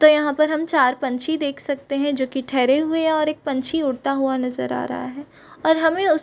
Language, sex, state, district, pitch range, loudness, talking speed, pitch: Hindi, female, Bihar, Supaul, 265-310 Hz, -21 LUFS, 260 wpm, 285 Hz